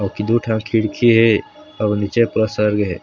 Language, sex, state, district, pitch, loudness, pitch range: Chhattisgarhi, male, Chhattisgarh, Sarguja, 110 Hz, -17 LUFS, 105-115 Hz